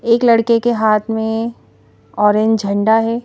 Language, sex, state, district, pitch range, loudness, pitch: Hindi, female, Madhya Pradesh, Bhopal, 210-230 Hz, -15 LUFS, 220 Hz